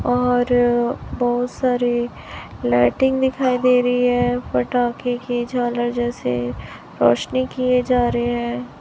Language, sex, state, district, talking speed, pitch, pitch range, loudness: Hindi, male, Chhattisgarh, Raipur, 115 wpm, 245 Hz, 240-250 Hz, -20 LUFS